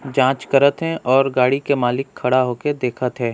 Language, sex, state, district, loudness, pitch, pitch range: Surgujia, male, Chhattisgarh, Sarguja, -18 LUFS, 130 Hz, 125-140 Hz